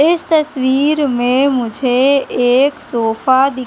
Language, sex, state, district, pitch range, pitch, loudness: Hindi, female, Madhya Pradesh, Katni, 250-290 Hz, 265 Hz, -14 LUFS